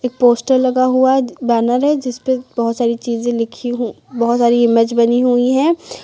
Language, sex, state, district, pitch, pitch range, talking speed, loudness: Hindi, female, Uttar Pradesh, Lucknow, 245 Hz, 235-255 Hz, 180 wpm, -15 LUFS